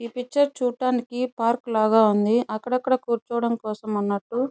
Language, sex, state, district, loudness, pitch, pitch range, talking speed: Telugu, female, Andhra Pradesh, Chittoor, -23 LUFS, 235 Hz, 220-250 Hz, 120 wpm